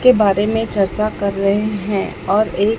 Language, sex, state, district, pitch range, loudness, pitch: Hindi, male, Chhattisgarh, Raipur, 200-215 Hz, -17 LUFS, 205 Hz